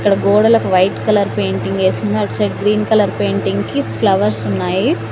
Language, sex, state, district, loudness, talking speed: Telugu, female, Telangana, Mahabubabad, -15 LUFS, 165 wpm